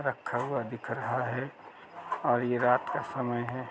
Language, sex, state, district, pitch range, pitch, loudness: Hindi, male, Uttar Pradesh, Jalaun, 120-130 Hz, 125 Hz, -31 LUFS